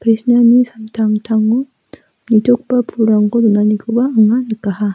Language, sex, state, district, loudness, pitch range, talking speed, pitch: Garo, female, Meghalaya, West Garo Hills, -14 LUFS, 215-240 Hz, 75 wpm, 225 Hz